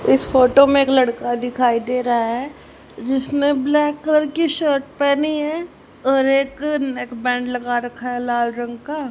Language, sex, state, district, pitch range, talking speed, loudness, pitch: Hindi, female, Haryana, Charkhi Dadri, 245-290 Hz, 170 wpm, -19 LUFS, 270 Hz